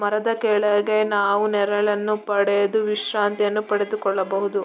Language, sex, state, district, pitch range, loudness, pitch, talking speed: Kannada, female, Karnataka, Mysore, 200-215 Hz, -21 LUFS, 205 Hz, 130 wpm